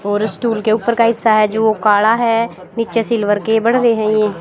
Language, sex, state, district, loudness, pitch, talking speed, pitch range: Hindi, female, Haryana, Jhajjar, -15 LUFS, 220 Hz, 230 wpm, 210-230 Hz